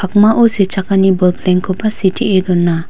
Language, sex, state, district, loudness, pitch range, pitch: Garo, female, Meghalaya, West Garo Hills, -13 LUFS, 180-205 Hz, 190 Hz